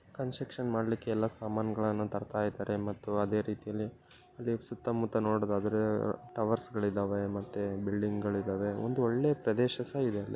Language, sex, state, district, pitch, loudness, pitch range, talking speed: Kannada, male, Karnataka, Bellary, 110 Hz, -33 LUFS, 105-115 Hz, 140 wpm